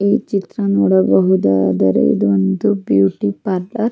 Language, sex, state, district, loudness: Kannada, female, Karnataka, Mysore, -15 LUFS